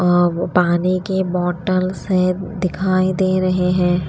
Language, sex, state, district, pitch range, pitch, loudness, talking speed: Hindi, female, Himachal Pradesh, Shimla, 180-185 Hz, 185 Hz, -18 LUFS, 130 wpm